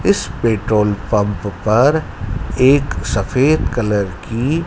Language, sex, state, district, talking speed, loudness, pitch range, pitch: Hindi, male, Madhya Pradesh, Dhar, 105 wpm, -17 LUFS, 105-135 Hz, 110 Hz